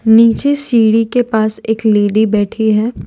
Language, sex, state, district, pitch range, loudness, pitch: Hindi, female, Gujarat, Valsad, 215-230 Hz, -12 LUFS, 220 Hz